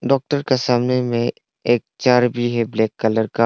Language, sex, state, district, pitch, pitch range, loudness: Hindi, male, Arunachal Pradesh, Longding, 120 Hz, 115-125 Hz, -19 LUFS